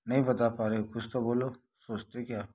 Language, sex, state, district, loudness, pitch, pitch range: Hindi, male, Jharkhand, Sahebganj, -32 LUFS, 120 Hz, 110-125 Hz